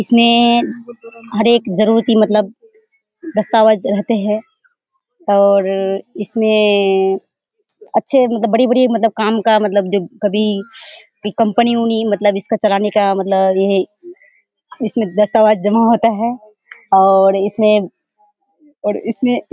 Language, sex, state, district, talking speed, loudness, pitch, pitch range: Hindi, female, Bihar, Kishanganj, 110 wpm, -14 LUFS, 220 Hz, 205-240 Hz